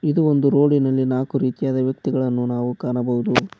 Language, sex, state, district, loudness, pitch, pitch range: Kannada, male, Karnataka, Koppal, -20 LUFS, 130 Hz, 125-140 Hz